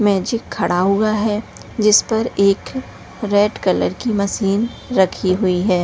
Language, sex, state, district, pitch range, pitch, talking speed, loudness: Hindi, female, Bihar, Darbhanga, 190-215 Hz, 205 Hz, 145 wpm, -17 LUFS